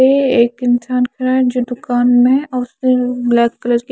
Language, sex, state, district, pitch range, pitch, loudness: Hindi, female, Chandigarh, Chandigarh, 245-255 Hz, 250 Hz, -15 LUFS